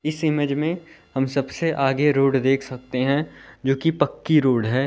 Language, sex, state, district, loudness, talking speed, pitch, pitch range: Hindi, male, Uttar Pradesh, Lalitpur, -22 LUFS, 175 wpm, 140 Hz, 135-155 Hz